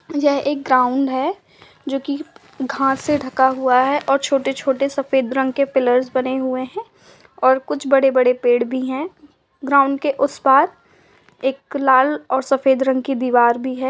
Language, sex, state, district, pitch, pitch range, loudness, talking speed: Hindi, female, Uttar Pradesh, Budaun, 270 Hz, 260-280 Hz, -18 LUFS, 170 wpm